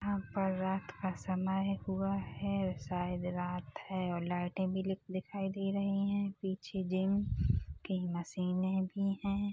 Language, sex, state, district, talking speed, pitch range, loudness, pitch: Hindi, female, Chhattisgarh, Rajnandgaon, 140 wpm, 185-195 Hz, -36 LUFS, 190 Hz